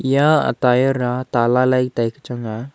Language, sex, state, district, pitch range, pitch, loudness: Wancho, male, Arunachal Pradesh, Longding, 120-130 Hz, 125 Hz, -18 LUFS